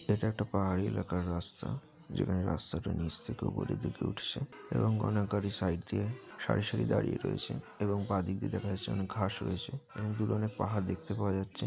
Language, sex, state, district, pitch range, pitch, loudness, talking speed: Bengali, male, West Bengal, Jalpaiguri, 95-110 Hz, 100 Hz, -35 LUFS, 190 wpm